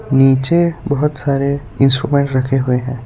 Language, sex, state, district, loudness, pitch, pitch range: Hindi, male, Gujarat, Valsad, -15 LUFS, 135 Hz, 130-145 Hz